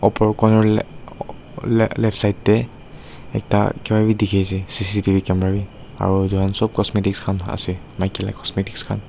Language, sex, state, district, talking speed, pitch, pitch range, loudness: Nagamese, male, Nagaland, Dimapur, 165 wpm, 105 Hz, 95-110 Hz, -20 LUFS